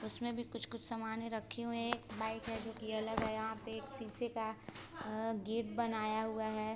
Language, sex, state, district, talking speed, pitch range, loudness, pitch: Hindi, female, Bihar, Sitamarhi, 220 wpm, 220-230 Hz, -41 LUFS, 225 Hz